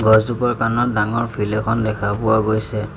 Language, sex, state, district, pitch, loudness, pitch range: Assamese, male, Assam, Sonitpur, 110 Hz, -19 LUFS, 110-115 Hz